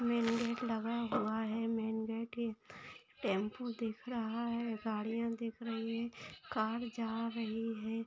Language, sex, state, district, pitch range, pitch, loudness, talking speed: Hindi, female, Maharashtra, Solapur, 220-235 Hz, 230 Hz, -38 LUFS, 140 wpm